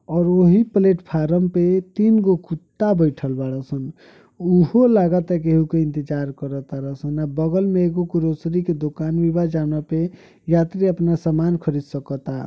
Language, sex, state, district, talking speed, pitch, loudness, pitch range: Bhojpuri, male, Uttar Pradesh, Deoria, 170 wpm, 165 Hz, -20 LUFS, 150-180 Hz